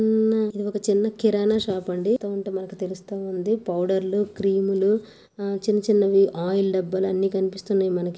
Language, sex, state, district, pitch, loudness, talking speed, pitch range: Telugu, female, Andhra Pradesh, Anantapur, 195 Hz, -23 LUFS, 175 wpm, 190-210 Hz